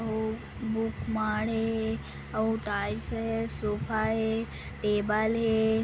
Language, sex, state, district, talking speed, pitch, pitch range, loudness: Hindi, female, Chhattisgarh, Kabirdham, 115 wpm, 220 Hz, 215-225 Hz, -30 LUFS